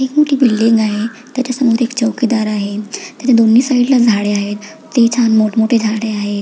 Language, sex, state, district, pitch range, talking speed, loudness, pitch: Marathi, female, Maharashtra, Pune, 215-250 Hz, 185 wpm, -14 LUFS, 230 Hz